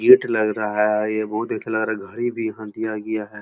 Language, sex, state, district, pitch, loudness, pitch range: Hindi, male, Uttar Pradesh, Muzaffarnagar, 110 Hz, -22 LUFS, 105-110 Hz